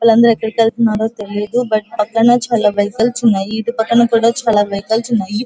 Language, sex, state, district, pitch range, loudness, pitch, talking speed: Telugu, female, Andhra Pradesh, Guntur, 210-230 Hz, -14 LUFS, 225 Hz, 165 wpm